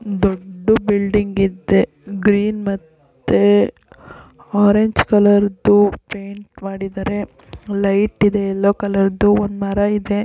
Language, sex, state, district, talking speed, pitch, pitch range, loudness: Kannada, female, Karnataka, Raichur, 100 wpm, 200 Hz, 195-205 Hz, -17 LUFS